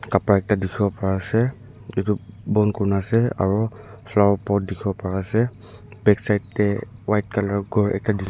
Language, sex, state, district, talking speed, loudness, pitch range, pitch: Nagamese, male, Nagaland, Dimapur, 160 wpm, -22 LUFS, 100-110 Hz, 105 Hz